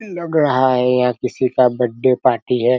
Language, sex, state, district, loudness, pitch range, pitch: Hindi, male, Bihar, Araria, -16 LUFS, 125-130 Hz, 125 Hz